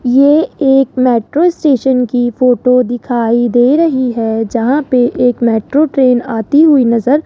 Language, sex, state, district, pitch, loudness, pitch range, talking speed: Hindi, male, Rajasthan, Jaipur, 250 Hz, -11 LUFS, 240-275 Hz, 155 wpm